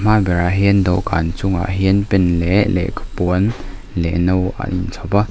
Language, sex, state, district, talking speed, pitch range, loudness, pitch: Mizo, male, Mizoram, Aizawl, 170 wpm, 90-100 Hz, -17 LUFS, 95 Hz